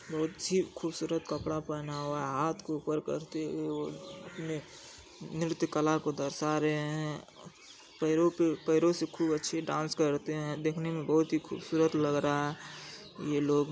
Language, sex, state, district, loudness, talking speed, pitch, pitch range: Maithili, male, Bihar, Supaul, -32 LUFS, 165 wpm, 155 Hz, 150-165 Hz